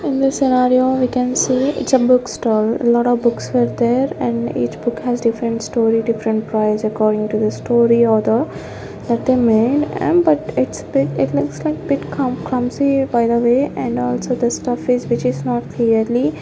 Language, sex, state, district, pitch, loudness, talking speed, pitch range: English, female, Punjab, Fazilka, 235 Hz, -17 LUFS, 200 wpm, 215-250 Hz